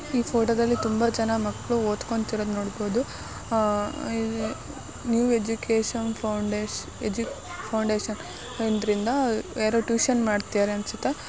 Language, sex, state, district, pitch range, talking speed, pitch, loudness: Kannada, female, Karnataka, Shimoga, 215-235 Hz, 90 wpm, 225 Hz, -26 LUFS